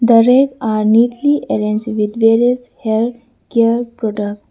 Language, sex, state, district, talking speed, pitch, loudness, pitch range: English, female, Arunachal Pradesh, Lower Dibang Valley, 135 wpm, 230 Hz, -15 LUFS, 220-245 Hz